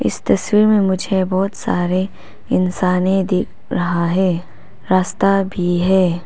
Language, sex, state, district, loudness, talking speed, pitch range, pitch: Hindi, female, Arunachal Pradesh, Papum Pare, -17 LUFS, 125 wpm, 180-190 Hz, 185 Hz